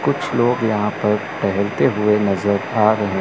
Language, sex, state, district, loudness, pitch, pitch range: Hindi, male, Chandigarh, Chandigarh, -18 LUFS, 105 Hz, 100-105 Hz